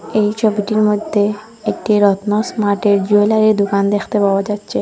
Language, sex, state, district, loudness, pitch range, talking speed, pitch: Bengali, female, Assam, Hailakandi, -15 LUFS, 205-215 Hz, 135 wpm, 210 Hz